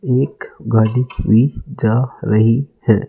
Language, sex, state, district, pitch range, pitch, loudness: Hindi, male, Rajasthan, Jaipur, 110-130 Hz, 115 Hz, -16 LUFS